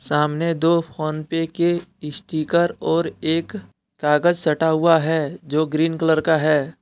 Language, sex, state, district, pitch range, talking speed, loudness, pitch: Hindi, male, Jharkhand, Deoghar, 155-170 Hz, 140 wpm, -20 LUFS, 160 Hz